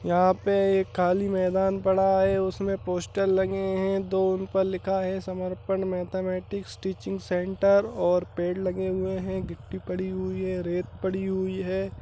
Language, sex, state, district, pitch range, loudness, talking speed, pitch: Hindi, male, Bihar, Saharsa, 185-190 Hz, -27 LUFS, 165 wpm, 190 Hz